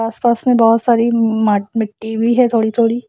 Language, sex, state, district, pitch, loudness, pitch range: Hindi, male, Assam, Sonitpur, 230 Hz, -15 LUFS, 220-235 Hz